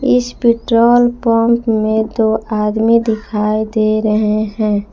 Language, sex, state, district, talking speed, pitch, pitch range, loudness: Hindi, female, Jharkhand, Palamu, 120 wpm, 220 Hz, 215-235 Hz, -14 LUFS